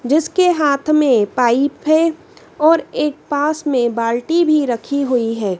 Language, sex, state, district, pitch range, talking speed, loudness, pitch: Hindi, female, Madhya Pradesh, Dhar, 245-315 Hz, 150 wpm, -16 LUFS, 290 Hz